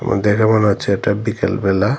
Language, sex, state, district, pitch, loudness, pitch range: Bengali, male, Tripura, Dhalai, 105 Hz, -16 LUFS, 100-110 Hz